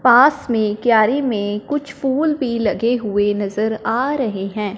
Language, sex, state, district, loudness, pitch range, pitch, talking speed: Hindi, female, Punjab, Fazilka, -18 LUFS, 210-265 Hz, 230 Hz, 165 wpm